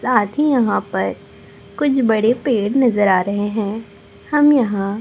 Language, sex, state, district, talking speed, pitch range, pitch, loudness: Hindi, female, Chhattisgarh, Raipur, 145 wpm, 205-260 Hz, 220 Hz, -17 LUFS